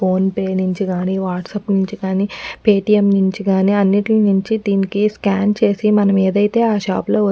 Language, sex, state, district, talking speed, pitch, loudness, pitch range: Telugu, female, Telangana, Nalgonda, 155 wpm, 200 Hz, -16 LUFS, 190-210 Hz